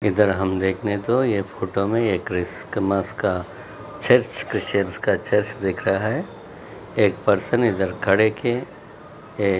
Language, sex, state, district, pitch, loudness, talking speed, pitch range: Hindi, male, Maharashtra, Chandrapur, 100 Hz, -22 LUFS, 130 wpm, 95-110 Hz